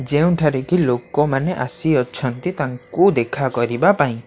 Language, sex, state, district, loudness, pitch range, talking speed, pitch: Odia, male, Odisha, Khordha, -18 LUFS, 125-160 Hz, 100 wpm, 145 Hz